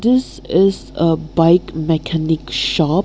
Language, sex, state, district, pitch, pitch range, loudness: English, female, Nagaland, Kohima, 165 Hz, 160-180 Hz, -16 LUFS